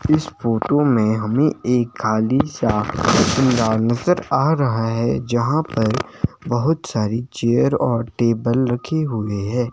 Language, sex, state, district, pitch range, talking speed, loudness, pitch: Hindi, male, Himachal Pradesh, Shimla, 115-140 Hz, 130 wpm, -19 LUFS, 120 Hz